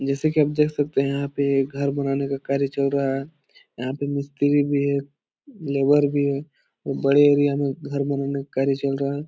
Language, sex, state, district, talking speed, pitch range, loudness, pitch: Hindi, male, Bihar, Jahanabad, 225 wpm, 140-145 Hz, -22 LUFS, 140 Hz